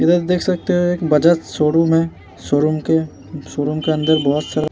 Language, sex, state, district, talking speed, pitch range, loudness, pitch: Hindi, male, Bihar, Vaishali, 205 wpm, 155-170 Hz, -17 LUFS, 160 Hz